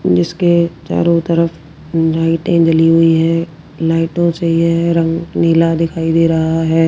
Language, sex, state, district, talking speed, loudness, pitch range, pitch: Hindi, female, Rajasthan, Jaipur, 140 wpm, -14 LUFS, 165-170 Hz, 165 Hz